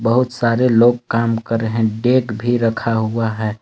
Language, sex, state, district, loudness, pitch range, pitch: Hindi, male, Jharkhand, Palamu, -17 LUFS, 115-120 Hz, 115 Hz